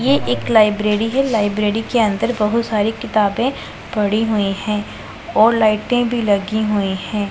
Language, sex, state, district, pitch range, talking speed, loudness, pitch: Hindi, female, Punjab, Pathankot, 205-230 Hz, 155 wpm, -17 LUFS, 215 Hz